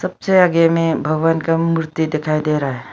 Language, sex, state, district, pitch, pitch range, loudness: Hindi, female, Arunachal Pradesh, Lower Dibang Valley, 165 Hz, 155-165 Hz, -17 LUFS